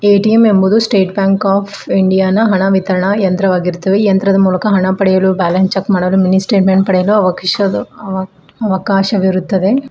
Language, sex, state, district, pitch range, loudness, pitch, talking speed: Kannada, female, Karnataka, Bidar, 190-200 Hz, -12 LUFS, 195 Hz, 110 wpm